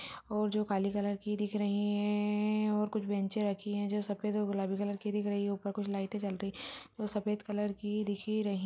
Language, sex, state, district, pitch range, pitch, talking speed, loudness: Hindi, female, Chhattisgarh, Raigarh, 200-210 Hz, 205 Hz, 235 wpm, -35 LUFS